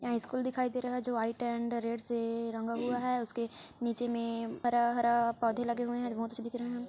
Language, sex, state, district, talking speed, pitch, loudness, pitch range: Hindi, female, Chhattisgarh, Kabirdham, 220 wpm, 235 Hz, -34 LUFS, 230-245 Hz